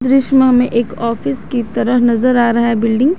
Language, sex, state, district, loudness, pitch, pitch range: Hindi, female, Jharkhand, Garhwa, -14 LUFS, 240 Hz, 235-255 Hz